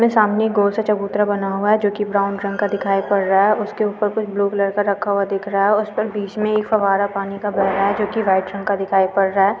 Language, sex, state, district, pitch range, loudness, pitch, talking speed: Hindi, female, Uttar Pradesh, Budaun, 195-210 Hz, -19 LUFS, 200 Hz, 275 wpm